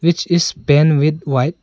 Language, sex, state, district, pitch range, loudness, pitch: English, male, Arunachal Pradesh, Longding, 145-170 Hz, -15 LUFS, 155 Hz